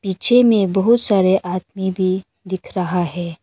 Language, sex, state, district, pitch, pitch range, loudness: Hindi, female, Arunachal Pradesh, Longding, 190 Hz, 180-200 Hz, -16 LUFS